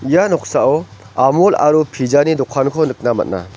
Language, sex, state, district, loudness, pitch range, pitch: Garo, male, Meghalaya, North Garo Hills, -15 LUFS, 120-150 Hz, 135 Hz